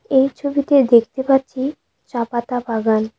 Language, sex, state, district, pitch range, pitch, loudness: Bengali, female, West Bengal, Cooch Behar, 235-275 Hz, 260 Hz, -18 LUFS